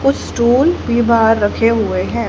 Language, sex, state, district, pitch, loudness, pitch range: Hindi, female, Haryana, Jhajjar, 230 Hz, -14 LUFS, 225-245 Hz